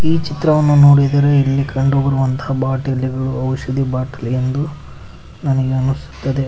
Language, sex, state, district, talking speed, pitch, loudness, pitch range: Kannada, male, Karnataka, Koppal, 110 wpm, 135 Hz, -16 LUFS, 130-140 Hz